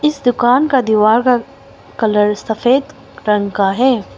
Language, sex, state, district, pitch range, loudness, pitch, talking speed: Hindi, female, Arunachal Pradesh, Longding, 210-260 Hz, -14 LUFS, 240 Hz, 145 wpm